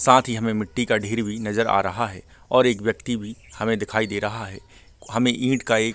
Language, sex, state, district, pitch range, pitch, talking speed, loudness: Hindi, male, Chhattisgarh, Bilaspur, 105-120 Hz, 110 Hz, 250 wpm, -23 LUFS